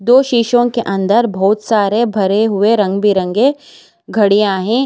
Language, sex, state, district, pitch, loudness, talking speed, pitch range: Hindi, female, Uttar Pradesh, Jyotiba Phule Nagar, 215 Hz, -13 LUFS, 150 wpm, 200-235 Hz